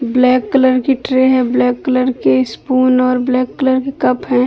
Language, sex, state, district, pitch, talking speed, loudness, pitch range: Hindi, female, Uttar Pradesh, Deoria, 255 Hz, 190 wpm, -14 LUFS, 245-260 Hz